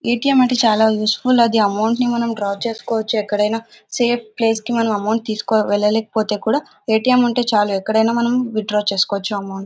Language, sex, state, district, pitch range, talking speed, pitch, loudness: Telugu, female, Karnataka, Bellary, 210-235 Hz, 160 wpm, 220 Hz, -17 LUFS